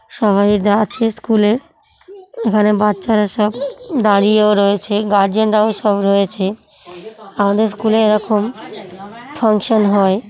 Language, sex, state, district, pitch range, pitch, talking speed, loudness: Bengali, female, West Bengal, North 24 Parganas, 200-220 Hz, 210 Hz, 100 wpm, -15 LUFS